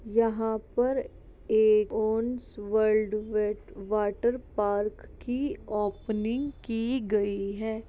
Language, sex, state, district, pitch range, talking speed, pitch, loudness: Hindi, female, Uttar Pradesh, Jalaun, 210-245 Hz, 100 wpm, 220 Hz, -28 LUFS